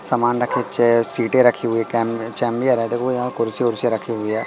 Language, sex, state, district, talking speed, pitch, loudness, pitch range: Hindi, male, Madhya Pradesh, Katni, 160 wpm, 120 Hz, -18 LUFS, 115-125 Hz